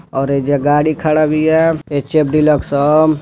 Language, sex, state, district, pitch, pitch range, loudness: Bhojpuri, male, Uttar Pradesh, Deoria, 150 Hz, 145-155 Hz, -14 LUFS